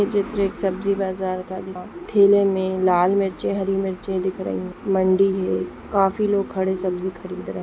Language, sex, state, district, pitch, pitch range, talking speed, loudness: Hindi, female, Bihar, Gopalganj, 190 Hz, 185-195 Hz, 220 wpm, -22 LUFS